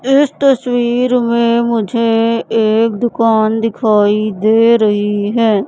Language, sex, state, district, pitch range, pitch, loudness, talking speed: Hindi, female, Madhya Pradesh, Katni, 215-235 Hz, 230 Hz, -13 LUFS, 105 wpm